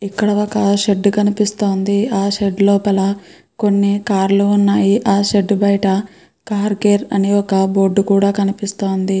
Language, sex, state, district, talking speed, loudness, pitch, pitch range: Telugu, female, Andhra Pradesh, Krishna, 135 wpm, -15 LUFS, 200 Hz, 195-205 Hz